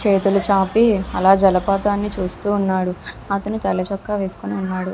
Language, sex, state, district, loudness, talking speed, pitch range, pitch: Telugu, female, Andhra Pradesh, Visakhapatnam, -19 LUFS, 135 wpm, 185-205 Hz, 195 Hz